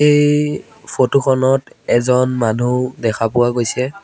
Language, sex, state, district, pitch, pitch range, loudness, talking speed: Assamese, male, Assam, Sonitpur, 125 Hz, 120-135 Hz, -16 LUFS, 120 wpm